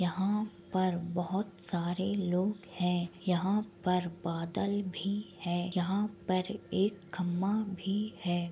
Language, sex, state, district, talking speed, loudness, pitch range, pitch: Hindi, female, Uttar Pradesh, Etah, 120 wpm, -33 LUFS, 175-200 Hz, 185 Hz